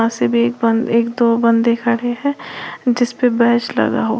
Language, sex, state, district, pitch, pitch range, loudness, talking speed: Hindi, female, Uttar Pradesh, Lalitpur, 235 Hz, 230-245 Hz, -16 LUFS, 185 wpm